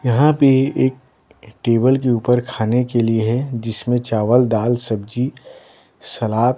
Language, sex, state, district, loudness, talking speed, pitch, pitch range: Hindi, male, Bihar, Patna, -18 LUFS, 135 wpm, 120 Hz, 115-130 Hz